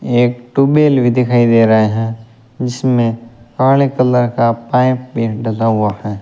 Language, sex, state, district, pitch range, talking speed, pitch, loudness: Hindi, male, Rajasthan, Bikaner, 115-125 Hz, 155 wpm, 120 Hz, -14 LUFS